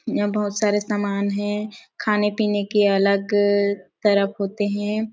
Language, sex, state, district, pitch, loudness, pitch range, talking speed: Hindi, female, Chhattisgarh, Sarguja, 205 Hz, -21 LUFS, 200-210 Hz, 140 wpm